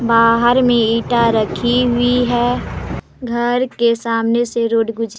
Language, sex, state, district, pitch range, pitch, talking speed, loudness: Hindi, female, Jharkhand, Palamu, 230-245 Hz, 235 Hz, 140 wpm, -15 LUFS